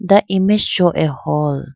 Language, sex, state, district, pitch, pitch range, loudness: English, female, Arunachal Pradesh, Lower Dibang Valley, 175 Hz, 150-200 Hz, -15 LUFS